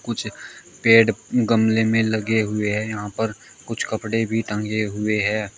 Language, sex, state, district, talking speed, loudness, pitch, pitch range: Hindi, male, Uttar Pradesh, Shamli, 160 wpm, -21 LUFS, 110 Hz, 105-115 Hz